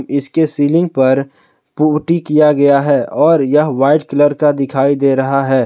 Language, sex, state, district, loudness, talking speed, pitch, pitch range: Hindi, male, Jharkhand, Palamu, -13 LUFS, 170 wpm, 145 Hz, 135-150 Hz